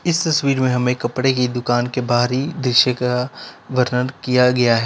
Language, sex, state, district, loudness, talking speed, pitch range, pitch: Hindi, male, Uttar Pradesh, Lalitpur, -18 LUFS, 185 wpm, 125-130 Hz, 125 Hz